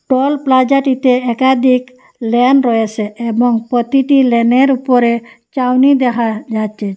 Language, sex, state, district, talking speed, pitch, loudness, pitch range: Bengali, female, Assam, Hailakandi, 105 wpm, 250 Hz, -13 LUFS, 235-260 Hz